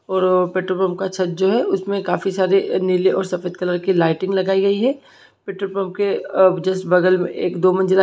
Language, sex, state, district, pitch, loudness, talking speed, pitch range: Hindi, male, Jharkhand, Sahebganj, 190 Hz, -19 LUFS, 210 wpm, 185-195 Hz